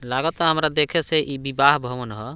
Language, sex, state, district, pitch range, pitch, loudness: Bhojpuri, male, Bihar, Muzaffarpur, 130-160 Hz, 140 Hz, -20 LUFS